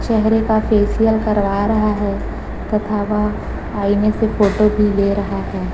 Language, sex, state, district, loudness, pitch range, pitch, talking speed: Hindi, female, Chhattisgarh, Raipur, -17 LUFS, 205-215 Hz, 210 Hz, 155 wpm